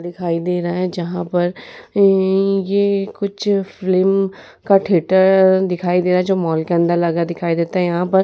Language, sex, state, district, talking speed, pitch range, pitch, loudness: Hindi, female, Uttar Pradesh, Varanasi, 195 wpm, 175-195 Hz, 185 Hz, -17 LUFS